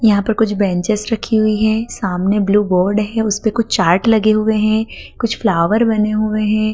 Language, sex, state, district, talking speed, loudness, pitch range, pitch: Hindi, female, Madhya Pradesh, Dhar, 205 wpm, -15 LUFS, 205-220 Hz, 215 Hz